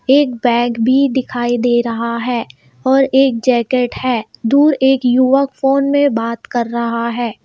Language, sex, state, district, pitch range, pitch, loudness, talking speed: Hindi, female, Madhya Pradesh, Bhopal, 235-270 Hz, 245 Hz, -15 LUFS, 160 wpm